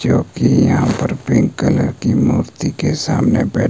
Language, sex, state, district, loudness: Hindi, male, Himachal Pradesh, Shimla, -16 LUFS